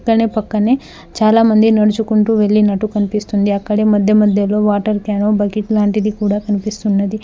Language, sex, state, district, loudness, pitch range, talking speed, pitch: Telugu, female, Telangana, Mahabubabad, -14 LUFS, 205-215 Hz, 125 wpm, 210 Hz